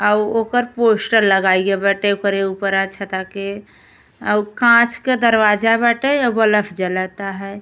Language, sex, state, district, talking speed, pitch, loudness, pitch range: Bhojpuri, female, Uttar Pradesh, Gorakhpur, 135 wpm, 210 Hz, -16 LUFS, 195-230 Hz